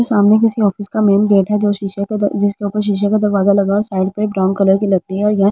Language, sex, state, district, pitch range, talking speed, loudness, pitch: Hindi, female, Delhi, New Delhi, 200-210 Hz, 280 wpm, -15 LUFS, 205 Hz